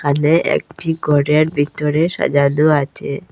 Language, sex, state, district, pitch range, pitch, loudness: Bengali, female, Assam, Hailakandi, 145-160 Hz, 150 Hz, -16 LUFS